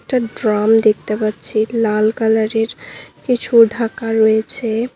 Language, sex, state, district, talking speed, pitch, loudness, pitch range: Bengali, female, West Bengal, Cooch Behar, 110 wpm, 225 Hz, -16 LUFS, 215-230 Hz